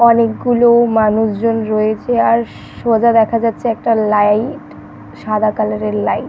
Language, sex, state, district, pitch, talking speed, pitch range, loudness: Bengali, female, West Bengal, North 24 Parganas, 220 Hz, 155 wpm, 215-230 Hz, -14 LUFS